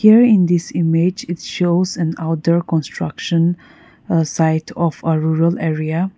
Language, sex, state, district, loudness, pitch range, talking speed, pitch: English, female, Nagaland, Kohima, -17 LUFS, 160-175 Hz, 135 wpm, 165 Hz